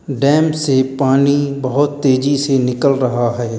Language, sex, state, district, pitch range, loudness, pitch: Hindi, male, Uttar Pradesh, Lalitpur, 130-145 Hz, -15 LUFS, 135 Hz